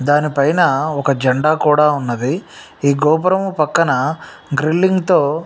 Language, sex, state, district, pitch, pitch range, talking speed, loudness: Telugu, male, Telangana, Nalgonda, 150 Hz, 140-165 Hz, 130 wpm, -16 LUFS